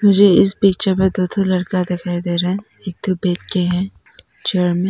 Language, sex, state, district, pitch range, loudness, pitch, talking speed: Hindi, female, Arunachal Pradesh, Papum Pare, 180-195 Hz, -17 LUFS, 185 Hz, 220 wpm